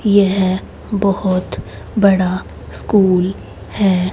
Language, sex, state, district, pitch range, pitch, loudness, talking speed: Hindi, female, Haryana, Rohtak, 185-200 Hz, 195 Hz, -16 LUFS, 70 wpm